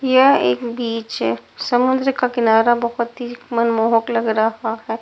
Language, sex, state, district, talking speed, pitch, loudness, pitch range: Hindi, female, Punjab, Pathankot, 155 wpm, 235 Hz, -18 LUFS, 225-245 Hz